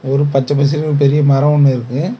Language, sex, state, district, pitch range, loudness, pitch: Tamil, male, Tamil Nadu, Kanyakumari, 135-150 Hz, -13 LUFS, 140 Hz